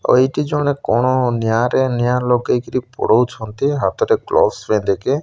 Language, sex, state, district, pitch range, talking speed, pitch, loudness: Odia, male, Odisha, Malkangiri, 120-145 Hz, 160 wpm, 130 Hz, -17 LUFS